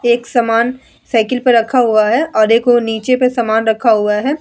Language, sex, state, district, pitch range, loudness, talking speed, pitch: Hindi, female, Bihar, Vaishali, 225-255 Hz, -13 LUFS, 230 wpm, 235 Hz